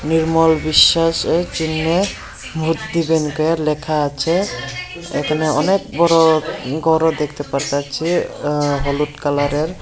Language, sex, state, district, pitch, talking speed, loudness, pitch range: Bengali, male, Tripura, West Tripura, 155 Hz, 110 wpm, -17 LUFS, 145-165 Hz